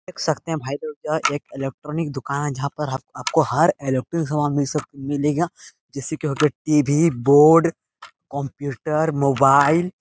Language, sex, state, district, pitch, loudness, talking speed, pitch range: Hindi, male, Bihar, Jahanabad, 145 Hz, -20 LUFS, 175 wpm, 140-155 Hz